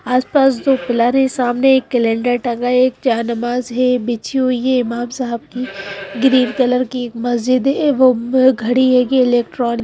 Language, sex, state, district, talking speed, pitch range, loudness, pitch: Hindi, female, Madhya Pradesh, Bhopal, 145 wpm, 240-260 Hz, -15 LUFS, 250 Hz